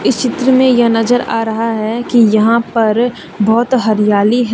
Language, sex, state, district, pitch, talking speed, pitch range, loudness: Hindi, female, Jharkhand, Deoghar, 230 Hz, 170 wpm, 220-245 Hz, -12 LUFS